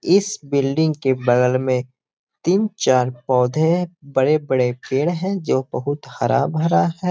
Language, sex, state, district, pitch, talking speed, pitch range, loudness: Hindi, male, Bihar, Gaya, 140 Hz, 125 wpm, 125-165 Hz, -19 LUFS